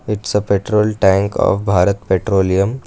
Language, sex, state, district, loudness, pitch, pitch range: English, male, Karnataka, Bangalore, -15 LUFS, 100 Hz, 95-105 Hz